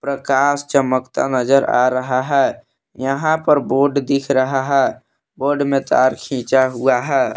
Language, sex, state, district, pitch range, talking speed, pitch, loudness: Hindi, male, Jharkhand, Palamu, 130-140 Hz, 165 wpm, 135 Hz, -17 LUFS